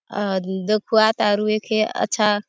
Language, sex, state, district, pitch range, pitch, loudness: Halbi, female, Chhattisgarh, Bastar, 205-215 Hz, 210 Hz, -20 LUFS